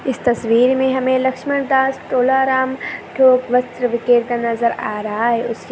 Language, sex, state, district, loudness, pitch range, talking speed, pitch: Hindi, female, Chhattisgarh, Bilaspur, -17 LUFS, 235-265 Hz, 145 wpm, 250 Hz